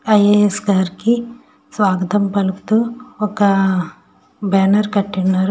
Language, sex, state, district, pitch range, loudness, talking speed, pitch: Telugu, female, Andhra Pradesh, Srikakulam, 195-215 Hz, -16 LUFS, 85 wpm, 205 Hz